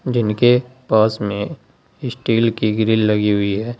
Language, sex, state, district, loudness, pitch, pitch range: Hindi, male, Uttar Pradesh, Saharanpur, -17 LUFS, 110 Hz, 105-120 Hz